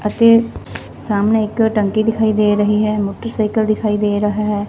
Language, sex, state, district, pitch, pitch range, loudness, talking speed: Punjabi, female, Punjab, Fazilka, 210 Hz, 210-220 Hz, -16 LUFS, 165 wpm